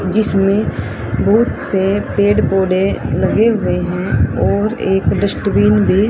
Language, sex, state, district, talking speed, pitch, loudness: Hindi, female, Haryana, Rohtak, 120 wpm, 190 Hz, -15 LUFS